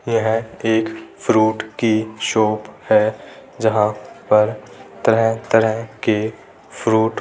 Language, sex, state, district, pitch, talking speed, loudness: Hindi, male, Rajasthan, Churu, 110 Hz, 100 wpm, -19 LUFS